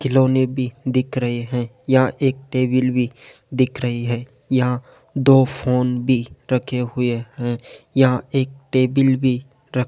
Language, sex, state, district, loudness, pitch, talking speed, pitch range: Hindi, male, Rajasthan, Jaipur, -20 LUFS, 130 Hz, 150 wpm, 125-130 Hz